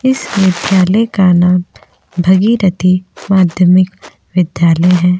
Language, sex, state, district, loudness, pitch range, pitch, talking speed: Hindi, female, Maharashtra, Aurangabad, -11 LUFS, 180-190 Hz, 185 Hz, 90 wpm